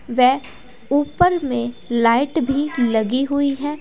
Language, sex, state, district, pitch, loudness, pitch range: Hindi, female, Uttar Pradesh, Saharanpur, 265 Hz, -19 LUFS, 245-290 Hz